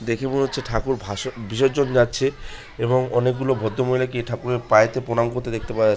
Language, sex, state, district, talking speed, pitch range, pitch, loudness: Bengali, male, West Bengal, Jhargram, 180 wpm, 115-130 Hz, 125 Hz, -22 LUFS